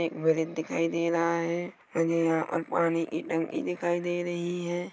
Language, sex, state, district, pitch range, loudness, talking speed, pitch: Hindi, male, Chhattisgarh, Korba, 165-175 Hz, -29 LUFS, 185 wpm, 170 Hz